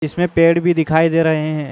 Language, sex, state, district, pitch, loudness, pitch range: Chhattisgarhi, male, Chhattisgarh, Raigarh, 165 Hz, -15 LUFS, 155-170 Hz